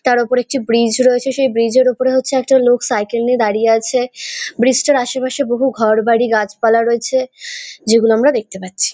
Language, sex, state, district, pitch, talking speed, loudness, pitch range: Bengali, female, West Bengal, North 24 Parganas, 245 Hz, 190 wpm, -14 LUFS, 230-260 Hz